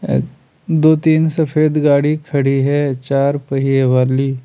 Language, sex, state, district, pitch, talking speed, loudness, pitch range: Hindi, male, Rajasthan, Jaipur, 140 Hz, 120 wpm, -15 LUFS, 135-155 Hz